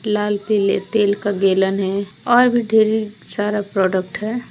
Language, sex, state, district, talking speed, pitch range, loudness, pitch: Hindi, female, Jharkhand, Deoghar, 160 wpm, 195-220 Hz, -18 LUFS, 205 Hz